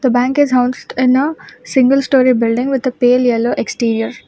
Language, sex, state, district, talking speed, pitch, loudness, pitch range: English, female, Karnataka, Bangalore, 180 wpm, 255 Hz, -14 LUFS, 245-265 Hz